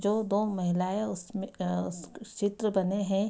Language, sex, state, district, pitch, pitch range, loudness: Hindi, female, Bihar, Madhepura, 200 Hz, 185-215 Hz, -31 LUFS